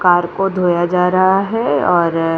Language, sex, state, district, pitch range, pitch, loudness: Hindi, female, Uttar Pradesh, Jyotiba Phule Nagar, 175-190 Hz, 180 Hz, -15 LUFS